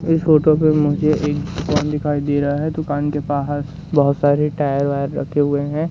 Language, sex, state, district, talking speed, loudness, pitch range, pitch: Hindi, male, Madhya Pradesh, Katni, 205 wpm, -18 LUFS, 145-155 Hz, 150 Hz